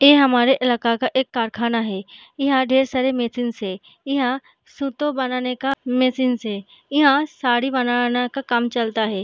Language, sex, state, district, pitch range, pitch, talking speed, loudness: Hindi, female, Bihar, Jahanabad, 235-265 Hz, 250 Hz, 180 wpm, -20 LUFS